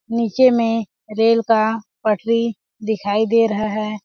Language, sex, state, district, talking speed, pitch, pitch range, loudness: Hindi, female, Chhattisgarh, Balrampur, 135 wpm, 225 Hz, 215-230 Hz, -18 LUFS